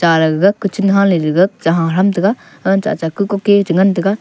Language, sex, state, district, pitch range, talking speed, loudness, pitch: Wancho, male, Arunachal Pradesh, Longding, 170-200 Hz, 255 wpm, -14 LUFS, 195 Hz